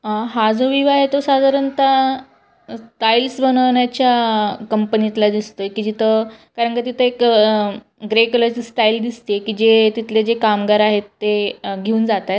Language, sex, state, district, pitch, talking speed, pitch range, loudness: Marathi, female, Maharashtra, Chandrapur, 225 Hz, 155 wpm, 215-245 Hz, -16 LUFS